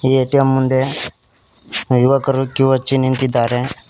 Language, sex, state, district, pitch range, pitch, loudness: Kannada, male, Karnataka, Koppal, 130-135 Hz, 130 Hz, -16 LUFS